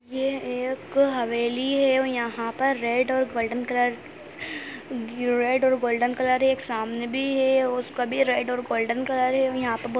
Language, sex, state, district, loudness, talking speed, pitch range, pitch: Hindi, female, Uttarakhand, Tehri Garhwal, -24 LUFS, 185 wpm, 240-265 Hz, 250 Hz